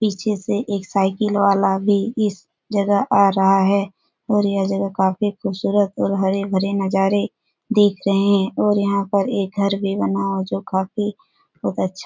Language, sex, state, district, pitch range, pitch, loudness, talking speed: Hindi, female, Bihar, Supaul, 195-205 Hz, 200 Hz, -19 LUFS, 170 wpm